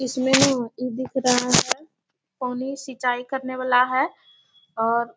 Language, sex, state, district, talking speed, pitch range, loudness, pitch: Hindi, female, Bihar, Bhagalpur, 150 wpm, 250-265 Hz, -22 LUFS, 255 Hz